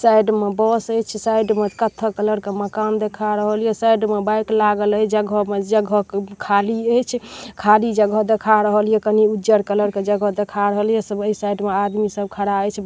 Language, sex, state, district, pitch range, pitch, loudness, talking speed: Maithili, female, Bihar, Darbhanga, 205-220 Hz, 210 Hz, -19 LUFS, 195 wpm